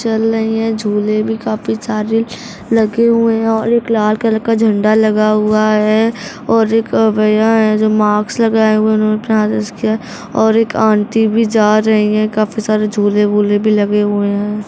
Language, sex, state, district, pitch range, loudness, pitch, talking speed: Hindi, female, Uttar Pradesh, Gorakhpur, 215-225 Hz, -13 LUFS, 215 Hz, 170 wpm